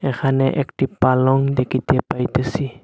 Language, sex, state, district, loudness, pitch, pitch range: Bengali, male, Assam, Hailakandi, -19 LUFS, 130 Hz, 130-135 Hz